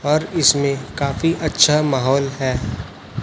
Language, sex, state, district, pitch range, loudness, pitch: Hindi, male, Chhattisgarh, Raipur, 130-150 Hz, -18 LUFS, 140 Hz